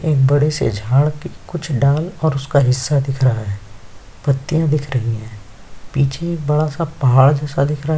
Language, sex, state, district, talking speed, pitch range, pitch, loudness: Hindi, male, Chhattisgarh, Sukma, 175 wpm, 120-150 Hz, 140 Hz, -17 LUFS